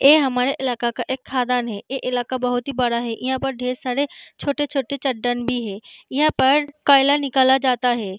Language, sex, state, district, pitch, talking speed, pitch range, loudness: Hindi, female, Bihar, Sitamarhi, 260 Hz, 200 wpm, 245-275 Hz, -21 LUFS